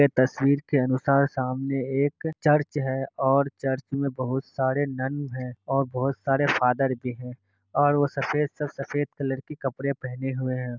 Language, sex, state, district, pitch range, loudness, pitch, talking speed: Hindi, male, Bihar, Kishanganj, 130-140 Hz, -26 LUFS, 135 Hz, 180 wpm